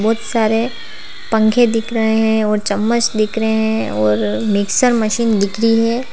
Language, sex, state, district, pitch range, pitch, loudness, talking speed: Hindi, female, Uttar Pradesh, Lalitpur, 210-230 Hz, 220 Hz, -16 LUFS, 155 wpm